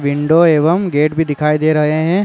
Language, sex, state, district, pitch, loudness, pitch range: Hindi, male, Uttar Pradesh, Jalaun, 155 Hz, -13 LUFS, 150-165 Hz